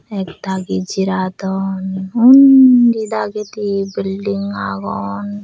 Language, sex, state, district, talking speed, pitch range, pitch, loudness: Chakma, female, Tripura, Unakoti, 75 wpm, 190-210 Hz, 195 Hz, -15 LUFS